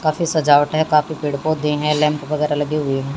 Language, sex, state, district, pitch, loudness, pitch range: Hindi, female, Haryana, Jhajjar, 150 Hz, -18 LUFS, 145-155 Hz